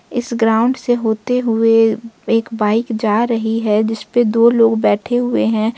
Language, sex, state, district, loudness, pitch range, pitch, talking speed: Hindi, female, Jharkhand, Ranchi, -15 LUFS, 220-235 Hz, 225 Hz, 175 wpm